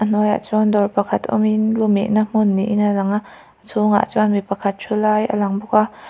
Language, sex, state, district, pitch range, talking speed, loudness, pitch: Mizo, female, Mizoram, Aizawl, 200-215 Hz, 215 wpm, -18 LUFS, 210 Hz